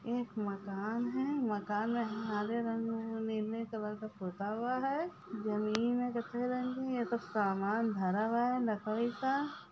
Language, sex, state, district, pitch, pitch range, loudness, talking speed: Hindi, female, Chhattisgarh, Bilaspur, 225 Hz, 210-245 Hz, -36 LUFS, 140 wpm